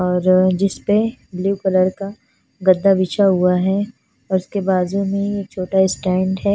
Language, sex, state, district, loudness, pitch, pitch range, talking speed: Hindi, female, Punjab, Fazilka, -18 LUFS, 190 Hz, 185-200 Hz, 165 wpm